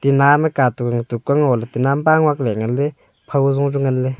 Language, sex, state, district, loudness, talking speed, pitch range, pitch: Wancho, male, Arunachal Pradesh, Longding, -17 LUFS, 245 wpm, 125-140 Hz, 135 Hz